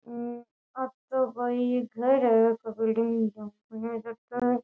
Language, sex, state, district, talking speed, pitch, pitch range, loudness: Rajasthani, female, Rajasthan, Nagaur, 90 wpm, 235 Hz, 225-245 Hz, -28 LUFS